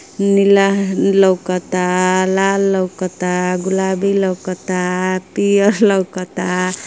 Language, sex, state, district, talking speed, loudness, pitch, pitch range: Bhojpuri, female, Uttar Pradesh, Ghazipur, 70 wpm, -16 LUFS, 185 Hz, 185-195 Hz